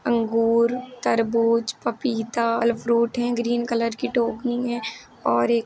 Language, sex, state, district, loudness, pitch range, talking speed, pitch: Hindi, female, Uttar Pradesh, Jalaun, -23 LUFS, 230-240 Hz, 115 wpm, 235 Hz